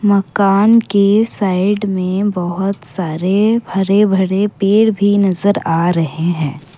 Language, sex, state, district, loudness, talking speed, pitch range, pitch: Hindi, female, Assam, Kamrup Metropolitan, -14 LUFS, 125 wpm, 180-205 Hz, 195 Hz